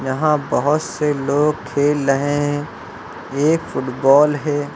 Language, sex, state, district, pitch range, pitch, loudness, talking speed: Hindi, male, Uttar Pradesh, Lucknow, 140-150 Hz, 145 Hz, -18 LUFS, 125 wpm